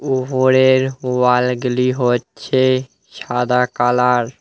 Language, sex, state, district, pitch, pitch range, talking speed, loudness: Bengali, male, West Bengal, Alipurduar, 125 Hz, 125-130 Hz, 80 wpm, -16 LUFS